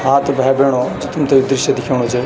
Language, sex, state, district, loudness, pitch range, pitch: Garhwali, male, Uttarakhand, Tehri Garhwal, -15 LUFS, 130-140 Hz, 135 Hz